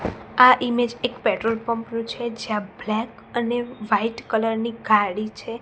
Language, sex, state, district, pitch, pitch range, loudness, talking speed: Gujarati, female, Gujarat, Gandhinagar, 230 Hz, 220-240 Hz, -22 LUFS, 160 wpm